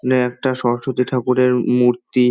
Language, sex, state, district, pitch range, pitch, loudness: Bengali, male, West Bengal, Dakshin Dinajpur, 125-130 Hz, 125 Hz, -18 LUFS